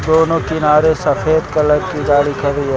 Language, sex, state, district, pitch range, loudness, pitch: Hindi, male, Uttar Pradesh, Lucknow, 145-160 Hz, -14 LUFS, 150 Hz